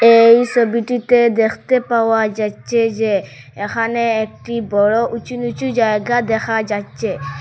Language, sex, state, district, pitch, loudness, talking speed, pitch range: Bengali, female, Assam, Hailakandi, 230 Hz, -16 LUFS, 120 wpm, 215-235 Hz